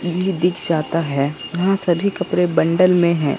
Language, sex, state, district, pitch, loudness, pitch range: Hindi, female, Bihar, Katihar, 175 Hz, -17 LUFS, 165-185 Hz